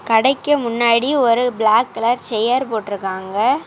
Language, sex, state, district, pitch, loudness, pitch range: Tamil, female, Tamil Nadu, Kanyakumari, 235 Hz, -17 LUFS, 215-250 Hz